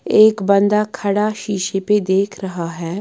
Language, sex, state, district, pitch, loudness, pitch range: Hindi, female, Bihar, Patna, 200 Hz, -17 LUFS, 190-210 Hz